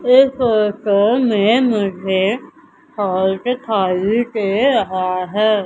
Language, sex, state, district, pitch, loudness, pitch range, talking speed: Hindi, female, Madhya Pradesh, Umaria, 210 Hz, -16 LUFS, 195-245 Hz, 95 wpm